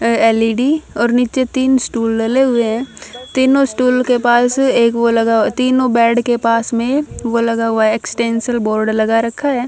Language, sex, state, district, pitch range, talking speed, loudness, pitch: Hindi, female, Bihar, Katihar, 230-255 Hz, 190 wpm, -14 LUFS, 235 Hz